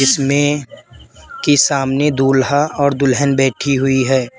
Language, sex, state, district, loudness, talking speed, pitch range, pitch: Hindi, male, Uttar Pradesh, Lalitpur, -14 LUFS, 125 wpm, 135-145 Hz, 140 Hz